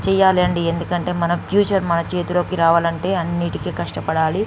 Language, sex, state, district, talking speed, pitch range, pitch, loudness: Telugu, female, Andhra Pradesh, Guntur, 120 wpm, 170-185 Hz, 175 Hz, -19 LUFS